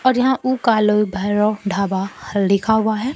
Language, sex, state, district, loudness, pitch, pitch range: Hindi, female, Bihar, Kaimur, -18 LUFS, 210 Hz, 200-235 Hz